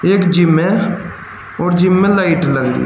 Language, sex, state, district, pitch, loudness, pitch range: Hindi, male, Uttar Pradesh, Shamli, 180 Hz, -13 LUFS, 170-195 Hz